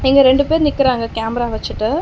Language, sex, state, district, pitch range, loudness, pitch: Tamil, female, Tamil Nadu, Chennai, 230-275 Hz, -16 LUFS, 265 Hz